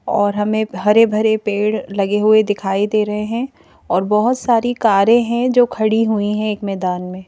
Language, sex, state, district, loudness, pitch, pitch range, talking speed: Hindi, female, Madhya Pradesh, Bhopal, -16 LUFS, 215 Hz, 205-225 Hz, 190 wpm